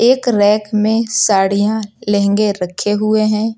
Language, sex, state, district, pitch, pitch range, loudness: Hindi, female, Uttar Pradesh, Lucknow, 210 Hz, 205-220 Hz, -14 LUFS